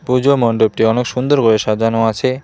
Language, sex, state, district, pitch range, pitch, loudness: Bengali, male, West Bengal, Cooch Behar, 110-130 Hz, 115 Hz, -14 LUFS